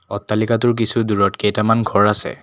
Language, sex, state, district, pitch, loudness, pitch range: Assamese, male, Assam, Kamrup Metropolitan, 105 Hz, -17 LUFS, 105-115 Hz